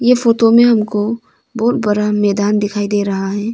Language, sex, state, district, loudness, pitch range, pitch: Hindi, female, Arunachal Pradesh, Longding, -14 LUFS, 205-230 Hz, 210 Hz